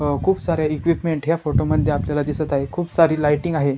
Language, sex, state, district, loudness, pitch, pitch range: Marathi, male, Maharashtra, Chandrapur, -20 LUFS, 155 Hz, 145-165 Hz